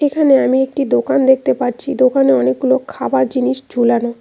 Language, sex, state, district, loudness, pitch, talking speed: Bengali, female, West Bengal, Cooch Behar, -15 LUFS, 245 Hz, 155 wpm